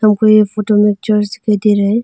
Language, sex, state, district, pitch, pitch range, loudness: Hindi, female, Arunachal Pradesh, Longding, 210 Hz, 210-215 Hz, -13 LUFS